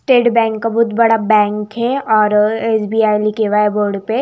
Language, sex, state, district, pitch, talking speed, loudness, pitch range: Hindi, female, Himachal Pradesh, Shimla, 220 Hz, 200 wpm, -14 LUFS, 210-230 Hz